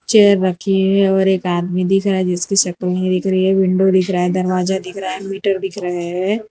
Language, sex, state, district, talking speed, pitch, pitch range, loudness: Hindi, female, Gujarat, Valsad, 240 wpm, 190 Hz, 185-195 Hz, -16 LUFS